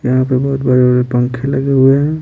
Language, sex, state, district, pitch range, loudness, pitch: Hindi, male, Bihar, Patna, 125-135 Hz, -13 LUFS, 130 Hz